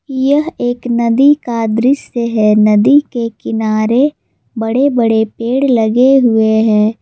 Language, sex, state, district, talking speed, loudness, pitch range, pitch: Hindi, female, Jharkhand, Palamu, 130 wpm, -12 LUFS, 220-265 Hz, 235 Hz